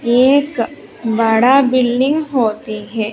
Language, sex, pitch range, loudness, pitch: Hindi, female, 225-260 Hz, -14 LUFS, 240 Hz